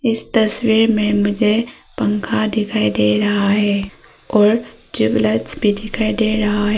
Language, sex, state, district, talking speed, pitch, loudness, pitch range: Hindi, female, Arunachal Pradesh, Papum Pare, 140 wpm, 210 Hz, -17 LUFS, 205-220 Hz